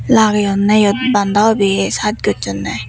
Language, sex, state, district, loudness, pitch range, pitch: Chakma, female, Tripura, West Tripura, -14 LUFS, 195-215 Hz, 205 Hz